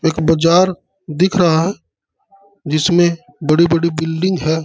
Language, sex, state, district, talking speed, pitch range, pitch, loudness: Hindi, male, Jharkhand, Sahebganj, 115 wpm, 160-185 Hz, 170 Hz, -15 LUFS